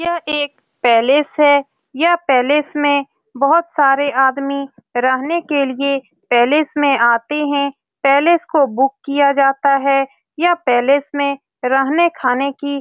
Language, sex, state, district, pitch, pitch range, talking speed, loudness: Hindi, female, Bihar, Saran, 280 Hz, 270-295 Hz, 140 wpm, -15 LUFS